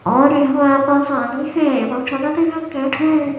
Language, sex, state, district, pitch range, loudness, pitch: Hindi, male, Chhattisgarh, Balrampur, 275-295 Hz, -16 LUFS, 280 Hz